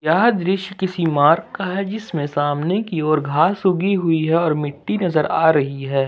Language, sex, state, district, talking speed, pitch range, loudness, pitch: Hindi, male, Jharkhand, Ranchi, 195 wpm, 150-190 Hz, -19 LUFS, 165 Hz